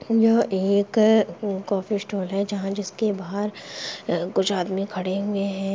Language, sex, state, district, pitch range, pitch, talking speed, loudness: Hindi, female, Chhattisgarh, Rajnandgaon, 195-210 Hz, 200 Hz, 145 wpm, -24 LUFS